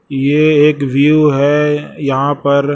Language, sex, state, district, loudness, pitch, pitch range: Hindi, male, Chhattisgarh, Raipur, -12 LUFS, 145 Hz, 140-150 Hz